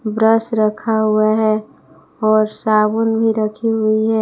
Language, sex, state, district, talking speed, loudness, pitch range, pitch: Hindi, female, Jharkhand, Palamu, 140 wpm, -16 LUFS, 215-225 Hz, 215 Hz